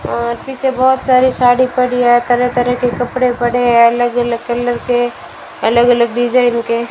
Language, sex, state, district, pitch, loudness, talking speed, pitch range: Hindi, female, Rajasthan, Bikaner, 245 Hz, -13 LUFS, 190 wpm, 240-250 Hz